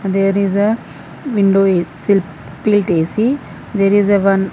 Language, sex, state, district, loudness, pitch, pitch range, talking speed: English, female, Punjab, Fazilka, -15 LUFS, 195 Hz, 190-205 Hz, 135 wpm